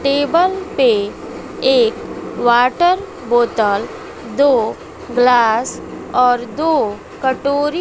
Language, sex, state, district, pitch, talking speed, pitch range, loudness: Hindi, female, Bihar, West Champaran, 280 Hz, 75 wpm, 240-365 Hz, -16 LUFS